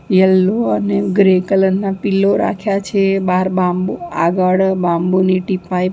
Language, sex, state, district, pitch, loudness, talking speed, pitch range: Gujarati, female, Maharashtra, Mumbai Suburban, 190 Hz, -15 LUFS, 150 wpm, 185-195 Hz